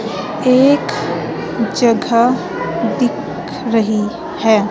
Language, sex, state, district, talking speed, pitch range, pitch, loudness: Hindi, female, Himachal Pradesh, Shimla, 65 wpm, 215-250 Hz, 230 Hz, -16 LUFS